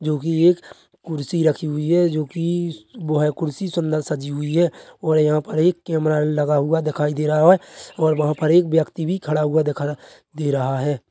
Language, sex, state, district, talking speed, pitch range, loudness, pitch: Hindi, male, Chhattisgarh, Bilaspur, 210 wpm, 150-165 Hz, -20 LUFS, 155 Hz